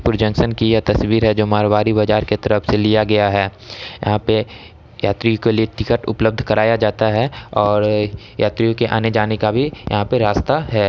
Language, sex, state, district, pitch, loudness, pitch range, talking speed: Maithili, male, Bihar, Samastipur, 110 Hz, -17 LUFS, 105-115 Hz, 180 wpm